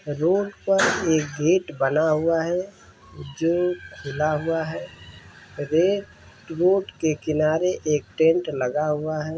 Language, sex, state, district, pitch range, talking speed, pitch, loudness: Hindi, male, Uttar Pradesh, Varanasi, 145-175 Hz, 130 wpm, 155 Hz, -23 LUFS